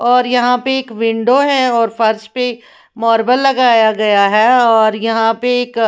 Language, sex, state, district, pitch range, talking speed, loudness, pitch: Hindi, female, Punjab, Fazilka, 225-250 Hz, 175 wpm, -13 LUFS, 230 Hz